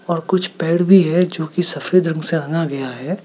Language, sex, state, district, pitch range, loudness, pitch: Hindi, male, Meghalaya, West Garo Hills, 160-180 Hz, -16 LUFS, 170 Hz